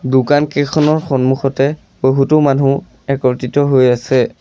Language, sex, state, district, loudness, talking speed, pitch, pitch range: Assamese, male, Assam, Sonitpur, -14 LUFS, 95 wpm, 135 Hz, 130-145 Hz